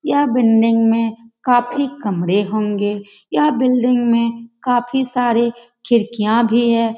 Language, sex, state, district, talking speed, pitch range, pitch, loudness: Hindi, female, Bihar, Jamui, 120 wpm, 225-245 Hz, 235 Hz, -17 LUFS